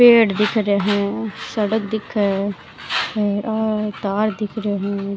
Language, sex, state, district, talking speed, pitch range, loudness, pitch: Rajasthani, female, Rajasthan, Churu, 150 wpm, 200-220 Hz, -20 LUFS, 210 Hz